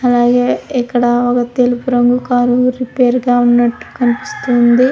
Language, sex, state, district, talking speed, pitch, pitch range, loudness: Telugu, female, Andhra Pradesh, Krishna, 135 wpm, 245 Hz, 245-250 Hz, -13 LUFS